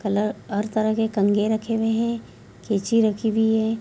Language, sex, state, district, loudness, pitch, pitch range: Hindi, female, Bihar, Bhagalpur, -22 LUFS, 220 Hz, 210-225 Hz